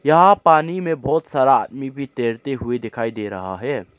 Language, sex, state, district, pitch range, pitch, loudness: Hindi, male, Arunachal Pradesh, Lower Dibang Valley, 115-160 Hz, 135 Hz, -19 LUFS